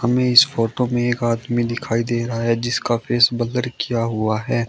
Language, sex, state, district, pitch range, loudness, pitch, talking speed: Hindi, male, Uttar Pradesh, Shamli, 115-120 Hz, -19 LUFS, 120 Hz, 205 wpm